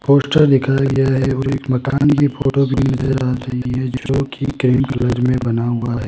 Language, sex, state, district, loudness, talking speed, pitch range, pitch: Hindi, male, Rajasthan, Jaipur, -17 LUFS, 215 wpm, 125-135 Hz, 135 Hz